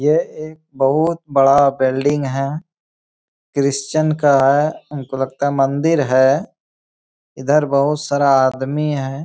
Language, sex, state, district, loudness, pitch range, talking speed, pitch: Hindi, male, Bihar, Bhagalpur, -16 LUFS, 135-150 Hz, 125 wpm, 140 Hz